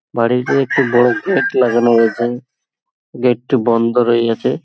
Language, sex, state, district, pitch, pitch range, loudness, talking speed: Bengali, male, West Bengal, Paschim Medinipur, 120 Hz, 115-125 Hz, -15 LUFS, 130 wpm